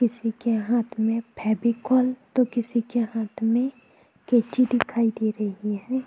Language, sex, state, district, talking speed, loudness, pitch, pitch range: Hindi, female, Chhattisgarh, Kabirdham, 150 wpm, -24 LUFS, 235 Hz, 220-245 Hz